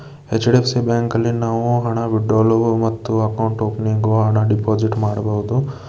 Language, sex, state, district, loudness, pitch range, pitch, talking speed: Kannada, male, Karnataka, Bidar, -18 LUFS, 110-120 Hz, 115 Hz, 165 wpm